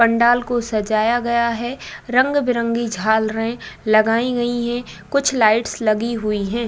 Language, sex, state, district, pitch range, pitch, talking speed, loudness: Hindi, female, Uttar Pradesh, Budaun, 220-240 Hz, 235 Hz, 135 wpm, -19 LUFS